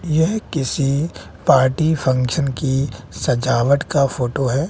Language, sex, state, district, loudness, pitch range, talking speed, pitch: Hindi, male, Bihar, West Champaran, -19 LUFS, 130-155 Hz, 115 wpm, 135 Hz